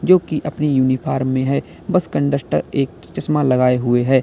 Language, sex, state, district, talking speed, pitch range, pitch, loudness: Hindi, male, Uttar Pradesh, Lalitpur, 170 wpm, 130-150 Hz, 140 Hz, -18 LUFS